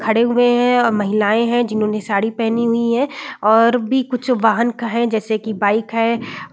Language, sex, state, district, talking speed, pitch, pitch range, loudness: Hindi, female, Bihar, Saran, 175 wpm, 230 Hz, 220-240 Hz, -17 LUFS